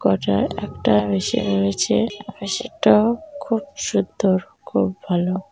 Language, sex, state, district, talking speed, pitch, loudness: Bengali, female, West Bengal, North 24 Parganas, 130 wpm, 185 Hz, -21 LUFS